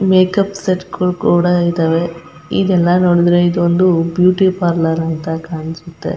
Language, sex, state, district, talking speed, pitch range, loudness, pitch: Kannada, female, Karnataka, Chamarajanagar, 115 wpm, 165-185 Hz, -14 LUFS, 175 Hz